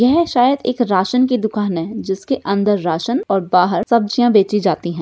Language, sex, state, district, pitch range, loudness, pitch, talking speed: Hindi, female, Bihar, Jahanabad, 190-245 Hz, -16 LUFS, 210 Hz, 190 wpm